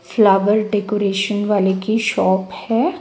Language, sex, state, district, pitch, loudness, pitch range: Hindi, female, Chhattisgarh, Raipur, 210 Hz, -17 LUFS, 195-220 Hz